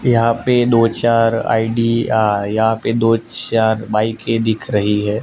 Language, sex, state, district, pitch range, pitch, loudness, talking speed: Hindi, male, Gujarat, Gandhinagar, 110-115 Hz, 115 Hz, -16 LUFS, 150 wpm